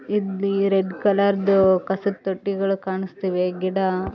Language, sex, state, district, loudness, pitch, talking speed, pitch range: Kannada, female, Karnataka, Raichur, -22 LUFS, 195 Hz, 100 wpm, 190-200 Hz